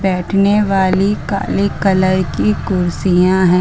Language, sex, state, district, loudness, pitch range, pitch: Hindi, female, Uttar Pradesh, Hamirpur, -14 LUFS, 180-195 Hz, 190 Hz